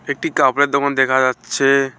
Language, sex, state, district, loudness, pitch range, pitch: Bengali, male, West Bengal, Alipurduar, -16 LUFS, 130-140 Hz, 135 Hz